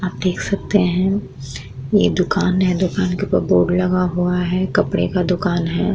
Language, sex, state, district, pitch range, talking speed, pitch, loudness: Hindi, female, Uttar Pradesh, Muzaffarnagar, 180-190 Hz, 180 wpm, 185 Hz, -18 LUFS